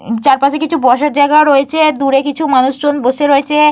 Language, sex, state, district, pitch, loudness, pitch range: Bengali, female, Jharkhand, Jamtara, 285 Hz, -11 LUFS, 270-300 Hz